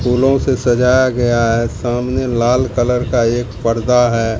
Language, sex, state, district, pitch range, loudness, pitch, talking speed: Hindi, male, Bihar, Katihar, 115-125 Hz, -15 LUFS, 120 Hz, 165 wpm